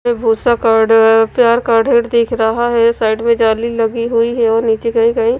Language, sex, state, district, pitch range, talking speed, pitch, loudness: Hindi, female, Punjab, Fazilka, 225-235 Hz, 210 wpm, 230 Hz, -13 LUFS